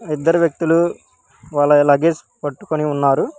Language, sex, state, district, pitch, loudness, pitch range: Telugu, male, Telangana, Hyderabad, 150 Hz, -17 LUFS, 145-165 Hz